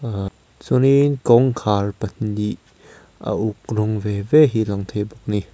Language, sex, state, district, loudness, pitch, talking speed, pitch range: Mizo, male, Mizoram, Aizawl, -19 LUFS, 110 Hz, 165 wpm, 105-120 Hz